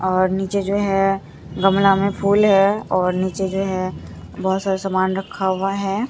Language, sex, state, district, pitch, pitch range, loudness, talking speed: Hindi, male, Bihar, Katihar, 195 Hz, 185-195 Hz, -19 LUFS, 175 wpm